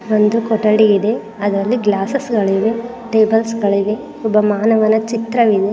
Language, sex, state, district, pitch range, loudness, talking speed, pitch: Kannada, female, Karnataka, Dharwad, 210-230 Hz, -15 LUFS, 105 wpm, 220 Hz